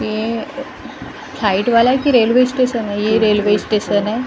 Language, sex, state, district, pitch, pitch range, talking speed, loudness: Hindi, female, Maharashtra, Gondia, 225 Hz, 210-250 Hz, 180 wpm, -15 LUFS